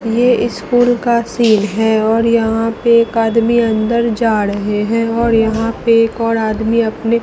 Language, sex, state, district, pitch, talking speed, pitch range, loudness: Hindi, female, Bihar, Katihar, 230 Hz, 175 wpm, 220-235 Hz, -14 LUFS